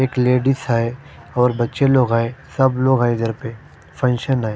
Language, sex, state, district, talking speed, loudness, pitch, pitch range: Hindi, male, Punjab, Fazilka, 185 wpm, -18 LUFS, 125 Hz, 115-130 Hz